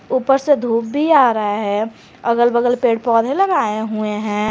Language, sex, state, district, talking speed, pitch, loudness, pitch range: Hindi, female, Jharkhand, Garhwa, 185 wpm, 235 Hz, -16 LUFS, 215-265 Hz